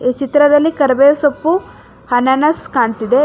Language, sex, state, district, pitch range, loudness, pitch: Kannada, female, Karnataka, Bangalore, 255-295 Hz, -13 LUFS, 280 Hz